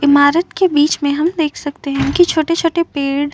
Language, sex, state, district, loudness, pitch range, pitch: Hindi, female, Uttar Pradesh, Muzaffarnagar, -15 LUFS, 285-335 Hz, 295 Hz